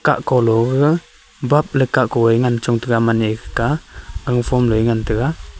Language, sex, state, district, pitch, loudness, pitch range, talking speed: Wancho, male, Arunachal Pradesh, Longding, 120 Hz, -17 LUFS, 115-130 Hz, 215 wpm